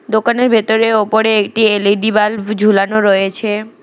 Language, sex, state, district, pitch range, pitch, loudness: Bengali, female, West Bengal, Alipurduar, 210-220 Hz, 215 Hz, -13 LUFS